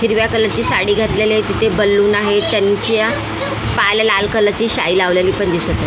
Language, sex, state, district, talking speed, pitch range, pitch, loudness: Marathi, female, Maharashtra, Mumbai Suburban, 195 wpm, 205-220 Hz, 210 Hz, -14 LUFS